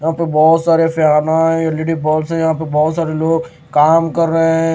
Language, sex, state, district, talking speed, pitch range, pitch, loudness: Hindi, male, Maharashtra, Mumbai Suburban, 225 wpm, 155-165 Hz, 160 Hz, -14 LUFS